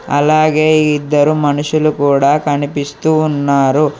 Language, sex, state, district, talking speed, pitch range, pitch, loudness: Telugu, male, Telangana, Hyderabad, 90 wpm, 145-155 Hz, 145 Hz, -13 LUFS